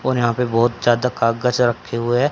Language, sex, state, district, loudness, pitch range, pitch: Hindi, male, Haryana, Charkhi Dadri, -18 LUFS, 115-125 Hz, 120 Hz